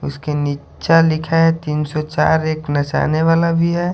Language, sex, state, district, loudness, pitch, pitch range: Hindi, male, Haryana, Charkhi Dadri, -17 LUFS, 155 Hz, 150-165 Hz